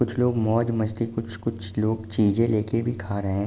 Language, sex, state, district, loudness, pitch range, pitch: Hindi, male, Uttar Pradesh, Jalaun, -25 LUFS, 105-115 Hz, 110 Hz